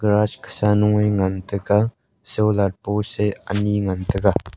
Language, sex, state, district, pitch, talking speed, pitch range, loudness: Wancho, male, Arunachal Pradesh, Longding, 105 Hz, 155 wpm, 100-105 Hz, -21 LUFS